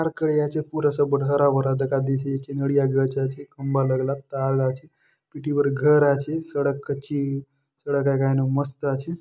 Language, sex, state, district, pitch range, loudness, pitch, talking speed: Halbi, male, Chhattisgarh, Bastar, 135-145 Hz, -23 LUFS, 140 Hz, 180 wpm